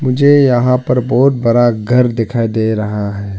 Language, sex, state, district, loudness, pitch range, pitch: Hindi, male, Arunachal Pradesh, Lower Dibang Valley, -13 LUFS, 110-125 Hz, 120 Hz